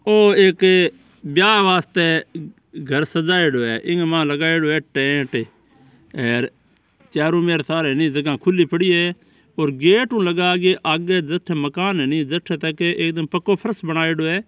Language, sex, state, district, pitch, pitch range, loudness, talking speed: Marwari, male, Rajasthan, Churu, 165 Hz, 150-180 Hz, -18 LUFS, 150 wpm